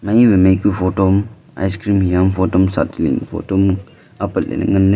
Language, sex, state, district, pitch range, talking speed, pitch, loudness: Wancho, male, Arunachal Pradesh, Longding, 95-100 Hz, 255 wpm, 95 Hz, -16 LUFS